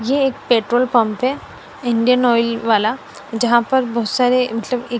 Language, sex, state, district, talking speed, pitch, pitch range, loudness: Hindi, female, Punjab, Fazilka, 170 wpm, 240 Hz, 230-250 Hz, -17 LUFS